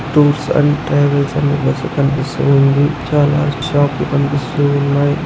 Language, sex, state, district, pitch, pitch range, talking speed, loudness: Telugu, male, Andhra Pradesh, Anantapur, 145 Hz, 140-145 Hz, 125 wpm, -14 LUFS